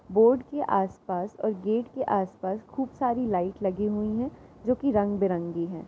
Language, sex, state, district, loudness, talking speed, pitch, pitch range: Hindi, female, Uttar Pradesh, Jyotiba Phule Nagar, -28 LUFS, 195 wpm, 210 Hz, 190-240 Hz